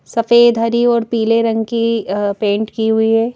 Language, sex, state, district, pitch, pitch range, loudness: Hindi, female, Madhya Pradesh, Bhopal, 225 Hz, 220-230 Hz, -15 LUFS